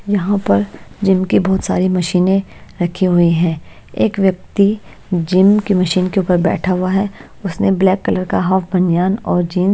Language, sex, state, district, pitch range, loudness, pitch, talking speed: Hindi, female, Bihar, Patna, 180-195 Hz, -15 LUFS, 185 Hz, 180 wpm